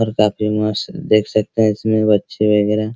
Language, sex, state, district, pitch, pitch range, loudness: Hindi, male, Bihar, Araria, 105 Hz, 105-110 Hz, -17 LUFS